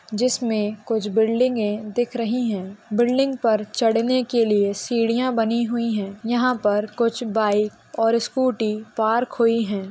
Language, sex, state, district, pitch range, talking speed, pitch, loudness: Hindi, female, Rajasthan, Nagaur, 215-240 Hz, 145 wpm, 225 Hz, -22 LUFS